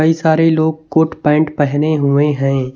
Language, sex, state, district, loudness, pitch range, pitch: Hindi, male, Chhattisgarh, Raipur, -14 LUFS, 145-160 Hz, 150 Hz